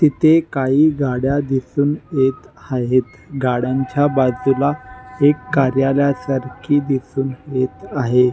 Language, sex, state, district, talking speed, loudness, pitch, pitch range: Marathi, male, Maharashtra, Nagpur, 100 wpm, -18 LUFS, 135 Hz, 130-145 Hz